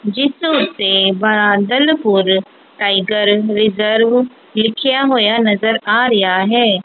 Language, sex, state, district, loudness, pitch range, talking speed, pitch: Punjabi, female, Punjab, Kapurthala, -14 LUFS, 205-245 Hz, 105 wpm, 215 Hz